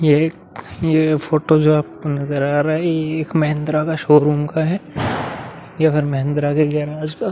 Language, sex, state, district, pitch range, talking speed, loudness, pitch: Hindi, male, Bihar, Vaishali, 150-155 Hz, 195 wpm, -18 LUFS, 155 Hz